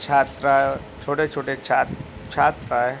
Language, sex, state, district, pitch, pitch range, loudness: Hindi, male, Bihar, Gopalganj, 135 Hz, 135-140 Hz, -22 LUFS